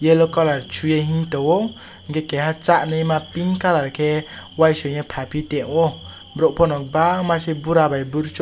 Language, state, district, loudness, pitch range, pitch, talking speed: Kokborok, Tripura, West Tripura, -20 LUFS, 150-165 Hz, 155 Hz, 150 wpm